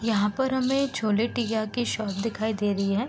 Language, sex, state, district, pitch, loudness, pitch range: Hindi, female, Uttar Pradesh, Deoria, 220 Hz, -26 LUFS, 210-240 Hz